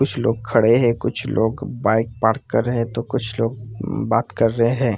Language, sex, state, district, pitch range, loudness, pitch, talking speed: Hindi, male, Bihar, Purnia, 110-125 Hz, -20 LUFS, 115 Hz, 215 wpm